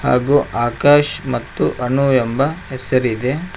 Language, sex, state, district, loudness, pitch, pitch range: Kannada, male, Karnataka, Koppal, -17 LUFS, 130 Hz, 125-145 Hz